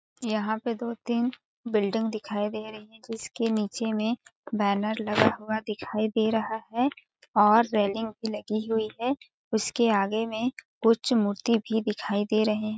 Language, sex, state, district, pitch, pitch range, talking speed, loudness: Hindi, female, Chhattisgarh, Balrampur, 220 Hz, 215-230 Hz, 165 wpm, -27 LUFS